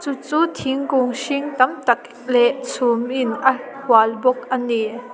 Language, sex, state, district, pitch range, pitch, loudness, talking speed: Mizo, female, Mizoram, Aizawl, 240-270 Hz, 255 Hz, -19 LUFS, 150 wpm